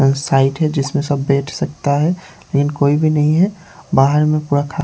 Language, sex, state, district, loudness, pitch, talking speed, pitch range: Hindi, male, Haryana, Charkhi Dadri, -16 LUFS, 145 Hz, 210 wpm, 140-155 Hz